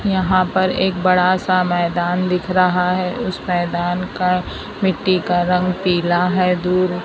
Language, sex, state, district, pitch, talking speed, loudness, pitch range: Hindi, female, Maharashtra, Mumbai Suburban, 180 Hz, 155 wpm, -18 LUFS, 180-185 Hz